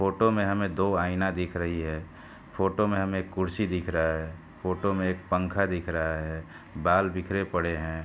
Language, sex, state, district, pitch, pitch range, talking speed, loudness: Hindi, male, Uttar Pradesh, Hamirpur, 90 Hz, 80-95 Hz, 200 wpm, -28 LUFS